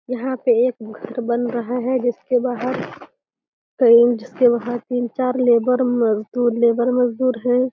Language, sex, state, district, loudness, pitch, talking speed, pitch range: Hindi, female, Uttar Pradesh, Deoria, -19 LUFS, 245 Hz, 125 wpm, 235-250 Hz